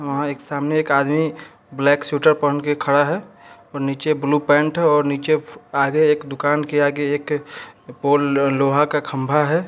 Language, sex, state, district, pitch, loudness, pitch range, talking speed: Hindi, male, Bihar, Sitamarhi, 145 Hz, -19 LUFS, 140-150 Hz, 165 wpm